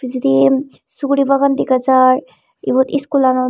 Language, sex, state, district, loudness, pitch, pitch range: Chakma, female, Tripura, Unakoti, -14 LUFS, 260 Hz, 255-275 Hz